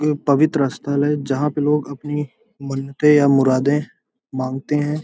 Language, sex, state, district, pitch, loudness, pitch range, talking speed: Hindi, male, Bihar, Gopalganj, 145 Hz, -19 LUFS, 135-150 Hz, 155 wpm